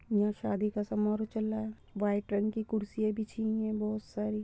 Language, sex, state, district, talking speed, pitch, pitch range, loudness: Hindi, female, Uttar Pradesh, Muzaffarnagar, 215 wpm, 215 Hz, 210-220 Hz, -33 LUFS